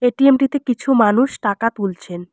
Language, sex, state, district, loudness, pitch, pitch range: Bengali, female, West Bengal, Alipurduar, -17 LUFS, 240 Hz, 200-265 Hz